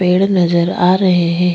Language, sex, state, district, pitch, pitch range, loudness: Hindi, female, Chhattisgarh, Bastar, 180 Hz, 175-185 Hz, -13 LUFS